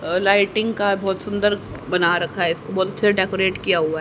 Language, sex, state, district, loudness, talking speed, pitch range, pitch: Hindi, female, Haryana, Rohtak, -20 LUFS, 225 wpm, 175-205 Hz, 190 Hz